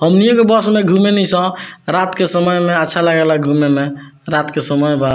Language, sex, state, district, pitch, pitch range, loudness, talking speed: Bhojpuri, male, Bihar, Muzaffarpur, 170 Hz, 150-185 Hz, -13 LUFS, 220 wpm